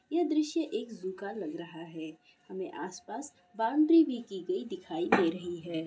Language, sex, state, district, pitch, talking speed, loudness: Hindi, female, West Bengal, Kolkata, 205 Hz, 195 wpm, -32 LUFS